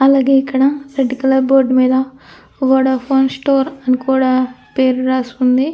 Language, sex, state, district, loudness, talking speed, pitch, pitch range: Telugu, female, Andhra Pradesh, Anantapur, -14 LUFS, 135 wpm, 265 Hz, 255-270 Hz